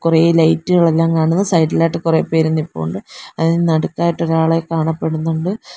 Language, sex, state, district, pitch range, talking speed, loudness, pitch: Malayalam, female, Kerala, Kollam, 160-170 Hz, 135 wpm, -16 LUFS, 165 Hz